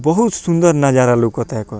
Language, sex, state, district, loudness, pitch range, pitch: Bhojpuri, male, Bihar, Muzaffarpur, -14 LUFS, 120-170 Hz, 135 Hz